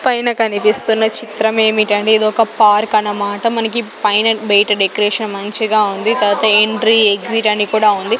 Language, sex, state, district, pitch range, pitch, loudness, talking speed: Telugu, female, Andhra Pradesh, Sri Satya Sai, 210-225 Hz, 215 Hz, -13 LUFS, 130 wpm